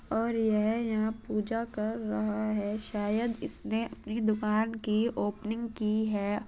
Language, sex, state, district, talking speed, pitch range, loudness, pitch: Hindi, female, Uttar Pradesh, Muzaffarnagar, 140 wpm, 215-225 Hz, -31 LUFS, 215 Hz